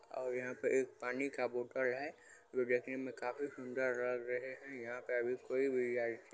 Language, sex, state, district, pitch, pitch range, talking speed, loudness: Hindi, male, Bihar, Supaul, 125 Hz, 125-130 Hz, 220 wpm, -39 LUFS